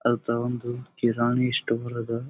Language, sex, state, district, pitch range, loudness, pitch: Kannada, male, Karnataka, Bijapur, 115-120 Hz, -26 LUFS, 120 Hz